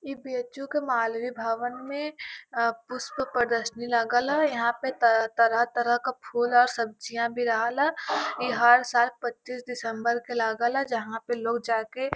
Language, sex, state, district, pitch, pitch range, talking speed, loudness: Bhojpuri, female, Uttar Pradesh, Varanasi, 240 Hz, 235-255 Hz, 185 wpm, -26 LUFS